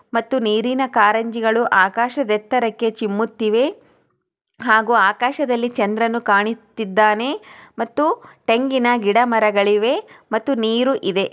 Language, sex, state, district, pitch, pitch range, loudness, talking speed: Kannada, female, Karnataka, Chamarajanagar, 230 Hz, 215-245 Hz, -18 LUFS, 80 wpm